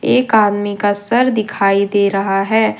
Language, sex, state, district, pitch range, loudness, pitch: Hindi, female, Jharkhand, Deoghar, 200-220 Hz, -15 LUFS, 205 Hz